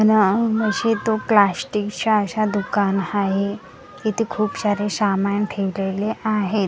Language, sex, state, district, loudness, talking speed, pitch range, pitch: Marathi, female, Maharashtra, Gondia, -20 LUFS, 115 wpm, 200-215 Hz, 205 Hz